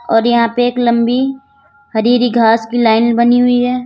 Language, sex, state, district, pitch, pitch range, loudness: Hindi, female, Uttar Pradesh, Lalitpur, 240 Hz, 235-245 Hz, -12 LUFS